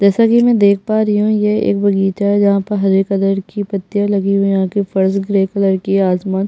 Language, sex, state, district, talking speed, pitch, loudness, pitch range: Hindi, female, Chhattisgarh, Jashpur, 270 wpm, 200 Hz, -14 LUFS, 195-205 Hz